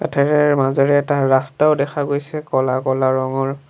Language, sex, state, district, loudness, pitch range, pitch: Assamese, male, Assam, Sonitpur, -17 LUFS, 135-145 Hz, 140 Hz